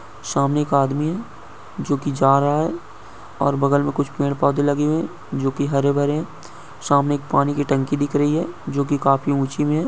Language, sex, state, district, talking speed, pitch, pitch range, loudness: Hindi, male, Uttar Pradesh, Muzaffarnagar, 195 wpm, 140 Hz, 140-150 Hz, -20 LUFS